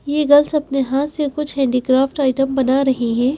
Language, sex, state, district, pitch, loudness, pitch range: Hindi, female, Madhya Pradesh, Bhopal, 270 Hz, -17 LUFS, 265-290 Hz